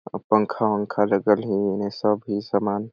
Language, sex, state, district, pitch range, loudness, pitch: Awadhi, male, Chhattisgarh, Balrampur, 100-105 Hz, -23 LUFS, 105 Hz